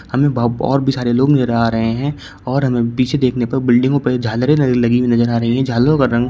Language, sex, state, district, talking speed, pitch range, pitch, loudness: Hindi, male, Uttar Pradesh, Shamli, 250 wpm, 120-135 Hz, 125 Hz, -15 LUFS